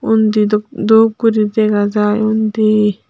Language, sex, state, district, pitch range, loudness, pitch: Chakma, female, Tripura, Unakoti, 210-220 Hz, -13 LUFS, 215 Hz